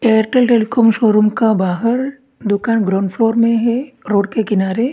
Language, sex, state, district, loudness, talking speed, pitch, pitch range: Hindi, male, Uttarakhand, Tehri Garhwal, -15 LUFS, 160 wpm, 225 Hz, 210-235 Hz